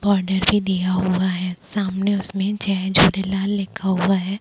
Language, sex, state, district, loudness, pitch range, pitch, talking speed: Hindi, female, Chhattisgarh, Bilaspur, -20 LUFS, 185-200 Hz, 195 Hz, 165 wpm